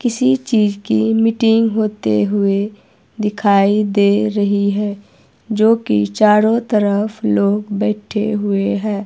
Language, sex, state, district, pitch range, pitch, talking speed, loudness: Hindi, female, Himachal Pradesh, Shimla, 200-220 Hz, 210 Hz, 120 wpm, -16 LUFS